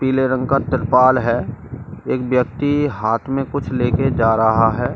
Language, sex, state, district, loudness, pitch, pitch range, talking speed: Hindi, male, Delhi, New Delhi, -17 LUFS, 130 Hz, 120-135 Hz, 180 wpm